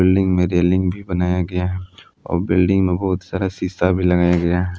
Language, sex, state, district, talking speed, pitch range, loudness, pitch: Hindi, male, Jharkhand, Palamu, 215 wpm, 90-95 Hz, -18 LUFS, 90 Hz